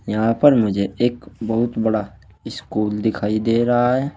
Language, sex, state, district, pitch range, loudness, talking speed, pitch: Hindi, male, Uttar Pradesh, Saharanpur, 105-120 Hz, -19 LUFS, 160 wpm, 110 Hz